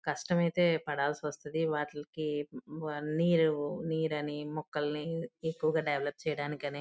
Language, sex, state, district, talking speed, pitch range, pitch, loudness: Telugu, female, Andhra Pradesh, Guntur, 105 wpm, 150-160 Hz, 150 Hz, -33 LUFS